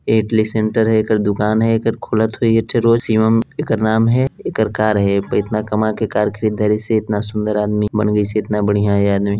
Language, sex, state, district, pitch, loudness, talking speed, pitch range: Hindi, male, Chhattisgarh, Balrampur, 110 Hz, -16 LUFS, 225 wpm, 105-110 Hz